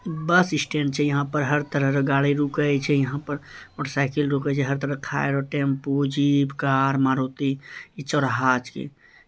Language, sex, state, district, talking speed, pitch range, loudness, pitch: Maithili, male, Bihar, Bhagalpur, 195 wpm, 140-145 Hz, -23 LUFS, 140 Hz